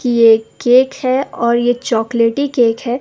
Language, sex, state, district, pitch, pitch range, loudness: Hindi, female, Himachal Pradesh, Shimla, 240 Hz, 230-255 Hz, -14 LUFS